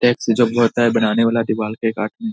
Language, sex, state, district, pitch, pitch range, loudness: Hindi, male, Bihar, Saharsa, 115 Hz, 110-120 Hz, -18 LUFS